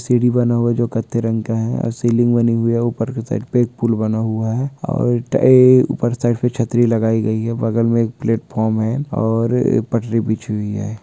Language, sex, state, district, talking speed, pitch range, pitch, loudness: Hindi, male, West Bengal, Jalpaiguri, 230 wpm, 110-120 Hz, 115 Hz, -17 LUFS